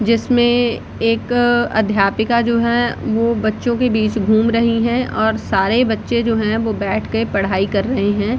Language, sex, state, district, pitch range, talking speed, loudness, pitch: Hindi, female, Bihar, Samastipur, 215-235 Hz, 170 wpm, -17 LUFS, 230 Hz